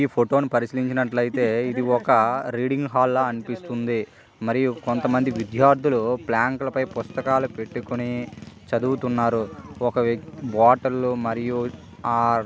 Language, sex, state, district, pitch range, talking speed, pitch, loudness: Telugu, male, Karnataka, Gulbarga, 120-130 Hz, 110 wpm, 125 Hz, -23 LUFS